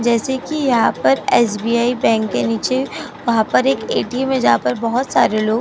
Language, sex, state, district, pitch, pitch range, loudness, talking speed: Hindi, female, Uttar Pradesh, Jyotiba Phule Nagar, 235 Hz, 215-255 Hz, -17 LUFS, 205 wpm